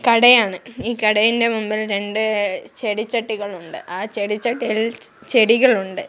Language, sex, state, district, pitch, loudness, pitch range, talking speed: Malayalam, female, Kerala, Kozhikode, 220 Hz, -18 LUFS, 205-235 Hz, 100 wpm